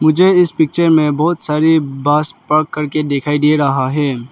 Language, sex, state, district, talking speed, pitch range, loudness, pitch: Hindi, male, Arunachal Pradesh, Lower Dibang Valley, 180 wpm, 145-160 Hz, -14 LUFS, 150 Hz